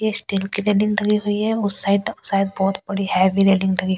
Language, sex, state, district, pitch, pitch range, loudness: Hindi, female, Delhi, New Delhi, 200 Hz, 195-210 Hz, -19 LUFS